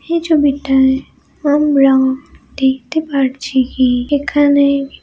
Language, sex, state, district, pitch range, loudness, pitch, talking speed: Bengali, female, West Bengal, Malda, 265-290 Hz, -14 LUFS, 275 Hz, 85 wpm